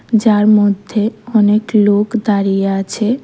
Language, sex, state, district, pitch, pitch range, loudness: Bengali, female, Tripura, West Tripura, 210 Hz, 205-220 Hz, -13 LUFS